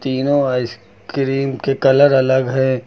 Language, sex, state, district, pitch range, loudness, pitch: Hindi, male, Uttar Pradesh, Lucknow, 130-135 Hz, -16 LUFS, 130 Hz